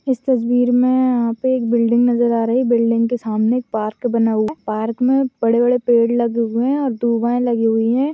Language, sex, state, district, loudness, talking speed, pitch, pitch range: Hindi, female, Bihar, Kishanganj, -17 LUFS, 220 wpm, 240 Hz, 230-250 Hz